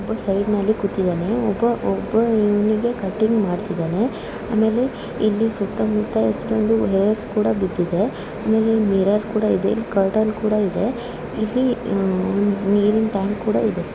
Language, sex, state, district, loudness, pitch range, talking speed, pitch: Kannada, female, Karnataka, Raichur, -20 LUFS, 200-220 Hz, 125 wpm, 215 Hz